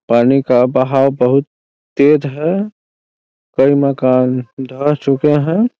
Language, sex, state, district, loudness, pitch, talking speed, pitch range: Hindi, male, Bihar, Muzaffarpur, -14 LUFS, 135 Hz, 115 wpm, 130-145 Hz